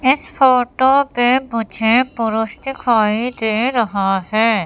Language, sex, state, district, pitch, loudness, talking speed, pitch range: Hindi, female, Madhya Pradesh, Katni, 235 Hz, -16 LUFS, 115 wpm, 220-260 Hz